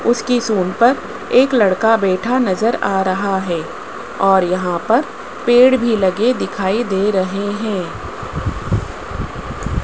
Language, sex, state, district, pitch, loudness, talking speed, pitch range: Hindi, male, Rajasthan, Jaipur, 200 Hz, -16 LUFS, 120 wpm, 185-235 Hz